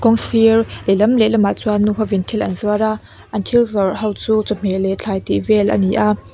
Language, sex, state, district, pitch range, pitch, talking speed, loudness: Mizo, female, Mizoram, Aizawl, 200-220 Hz, 210 Hz, 215 wpm, -16 LUFS